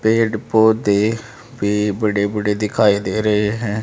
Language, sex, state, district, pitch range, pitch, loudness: Hindi, male, Haryana, Charkhi Dadri, 105-110 Hz, 105 Hz, -17 LUFS